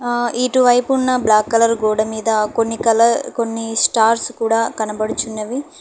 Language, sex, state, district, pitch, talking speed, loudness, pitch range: Telugu, female, Telangana, Hyderabad, 230 Hz, 125 wpm, -16 LUFS, 220-245 Hz